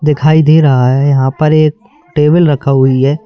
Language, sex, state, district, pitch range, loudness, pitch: Hindi, male, Madhya Pradesh, Bhopal, 135-155 Hz, -10 LUFS, 150 Hz